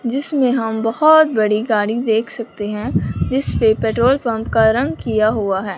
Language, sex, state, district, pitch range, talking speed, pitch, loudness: Hindi, male, Punjab, Fazilka, 215-265 Hz, 175 wpm, 225 Hz, -17 LUFS